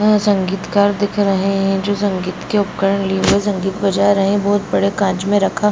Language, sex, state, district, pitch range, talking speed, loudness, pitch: Hindi, female, Bihar, Bhagalpur, 195-205 Hz, 220 wpm, -16 LUFS, 200 Hz